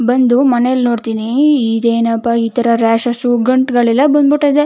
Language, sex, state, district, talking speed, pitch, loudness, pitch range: Kannada, female, Karnataka, Chamarajanagar, 130 wpm, 240 Hz, -13 LUFS, 230-260 Hz